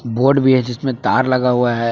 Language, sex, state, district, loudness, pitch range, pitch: Hindi, male, Jharkhand, Palamu, -16 LUFS, 120-130 Hz, 125 Hz